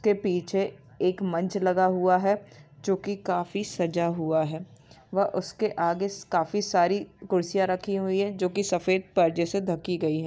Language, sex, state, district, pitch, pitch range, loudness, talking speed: Hindi, female, Maharashtra, Aurangabad, 185 Hz, 170-195 Hz, -27 LUFS, 175 wpm